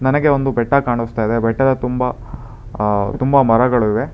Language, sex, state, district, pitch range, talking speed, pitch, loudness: Kannada, male, Karnataka, Bangalore, 115-135 Hz, 145 wpm, 120 Hz, -16 LUFS